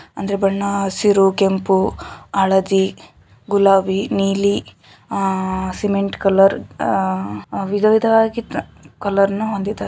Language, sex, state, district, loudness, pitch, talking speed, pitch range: Kannada, female, Karnataka, Shimoga, -18 LUFS, 195 Hz, 80 wpm, 190-200 Hz